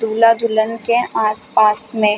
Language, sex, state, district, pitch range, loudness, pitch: Hindi, female, Chhattisgarh, Raigarh, 215-230 Hz, -15 LUFS, 220 Hz